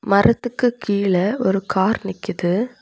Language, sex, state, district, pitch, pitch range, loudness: Tamil, female, Tamil Nadu, Kanyakumari, 200 Hz, 190-240 Hz, -20 LUFS